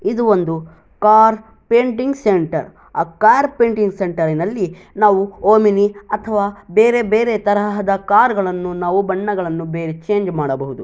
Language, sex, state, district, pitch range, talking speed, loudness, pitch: Kannada, female, Karnataka, Shimoga, 175-215 Hz, 125 wpm, -16 LUFS, 205 Hz